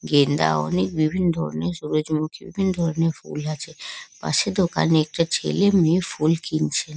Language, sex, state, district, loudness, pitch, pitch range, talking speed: Bengali, female, West Bengal, North 24 Parganas, -22 LUFS, 155 Hz, 150-170 Hz, 130 wpm